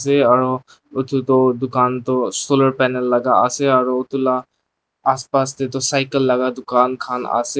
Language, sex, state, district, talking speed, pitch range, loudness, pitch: Nagamese, male, Nagaland, Dimapur, 160 wpm, 125-135 Hz, -18 LUFS, 130 Hz